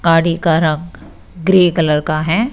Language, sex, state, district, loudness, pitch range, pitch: Hindi, female, Rajasthan, Jaipur, -14 LUFS, 155-175 Hz, 165 Hz